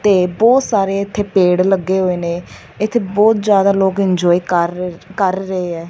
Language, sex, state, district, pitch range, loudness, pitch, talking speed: Punjabi, female, Punjab, Fazilka, 180-200 Hz, -15 LUFS, 190 Hz, 175 wpm